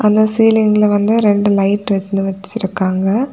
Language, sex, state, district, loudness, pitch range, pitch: Tamil, female, Tamil Nadu, Kanyakumari, -14 LUFS, 195-215 Hz, 205 Hz